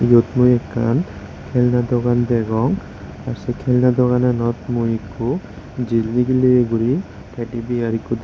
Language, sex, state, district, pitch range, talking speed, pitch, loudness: Chakma, male, Tripura, West Tripura, 115-125 Hz, 140 wpm, 120 Hz, -18 LUFS